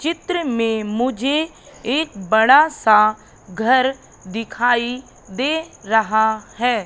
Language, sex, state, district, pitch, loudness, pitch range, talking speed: Hindi, female, Madhya Pradesh, Katni, 240 Hz, -18 LUFS, 220-270 Hz, 95 wpm